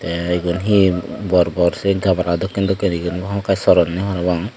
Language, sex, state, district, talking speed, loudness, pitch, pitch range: Chakma, male, Tripura, Dhalai, 185 wpm, -18 LUFS, 90 Hz, 85-100 Hz